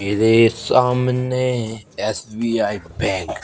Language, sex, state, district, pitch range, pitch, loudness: Hindi, male, Madhya Pradesh, Bhopal, 110-125 Hz, 115 Hz, -19 LUFS